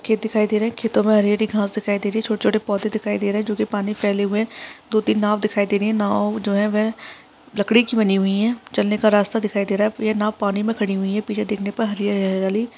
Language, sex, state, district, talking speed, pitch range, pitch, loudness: Hindi, female, Bihar, Saharsa, 275 wpm, 205-220 Hz, 210 Hz, -20 LUFS